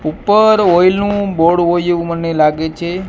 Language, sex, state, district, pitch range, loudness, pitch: Gujarati, male, Gujarat, Gandhinagar, 165-195 Hz, -13 LUFS, 175 Hz